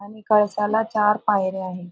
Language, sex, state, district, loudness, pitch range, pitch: Marathi, female, Maharashtra, Aurangabad, -21 LUFS, 190-215 Hz, 210 Hz